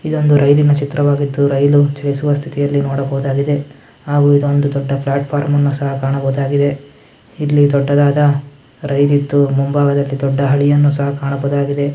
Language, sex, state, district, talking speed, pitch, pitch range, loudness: Kannada, male, Karnataka, Mysore, 120 wpm, 140 Hz, 140-145 Hz, -14 LUFS